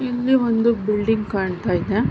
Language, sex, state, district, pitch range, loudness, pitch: Kannada, female, Karnataka, Mysore, 205-235 Hz, -20 LUFS, 220 Hz